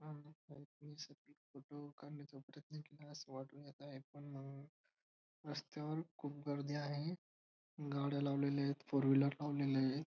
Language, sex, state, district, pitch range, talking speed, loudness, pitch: Marathi, male, Maharashtra, Dhule, 140-150 Hz, 65 wpm, -43 LUFS, 145 Hz